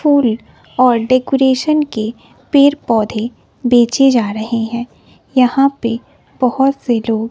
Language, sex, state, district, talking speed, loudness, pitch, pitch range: Hindi, female, Bihar, West Champaran, 125 wpm, -14 LUFS, 245 Hz, 230-270 Hz